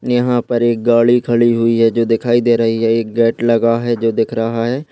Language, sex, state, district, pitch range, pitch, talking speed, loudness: Hindi, male, Goa, North and South Goa, 115-120 Hz, 115 Hz, 245 wpm, -14 LUFS